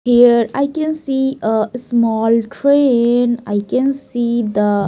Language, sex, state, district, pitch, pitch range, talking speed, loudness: English, female, Maharashtra, Mumbai Suburban, 240 Hz, 225-265 Hz, 150 wpm, -16 LUFS